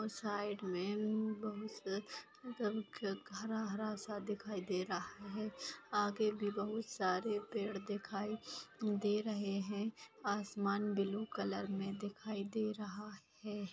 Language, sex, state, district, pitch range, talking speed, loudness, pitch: Hindi, female, Bihar, Bhagalpur, 200-215 Hz, 125 wpm, -41 LUFS, 210 Hz